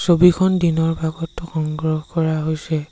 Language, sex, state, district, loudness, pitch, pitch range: Assamese, male, Assam, Sonitpur, -19 LUFS, 160 Hz, 155-170 Hz